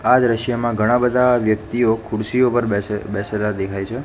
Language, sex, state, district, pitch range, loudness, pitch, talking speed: Gujarati, male, Gujarat, Gandhinagar, 105-120 Hz, -19 LUFS, 115 Hz, 165 wpm